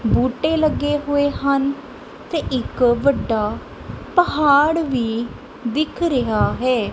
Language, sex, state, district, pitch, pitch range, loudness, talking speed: Punjabi, female, Punjab, Kapurthala, 275 Hz, 240-300 Hz, -19 LUFS, 105 wpm